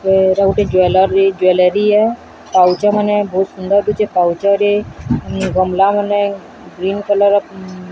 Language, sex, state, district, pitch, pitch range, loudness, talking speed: Odia, female, Odisha, Sambalpur, 195 Hz, 185-205 Hz, -14 LUFS, 105 wpm